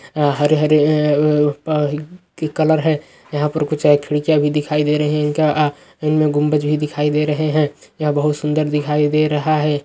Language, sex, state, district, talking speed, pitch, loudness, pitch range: Magahi, male, Bihar, Gaya, 170 wpm, 150 Hz, -17 LUFS, 150-155 Hz